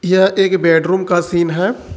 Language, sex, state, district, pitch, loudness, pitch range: Hindi, male, Jharkhand, Ranchi, 185 Hz, -14 LUFS, 170-190 Hz